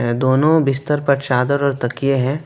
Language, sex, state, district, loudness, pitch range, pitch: Hindi, male, West Bengal, Alipurduar, -17 LUFS, 130-140 Hz, 135 Hz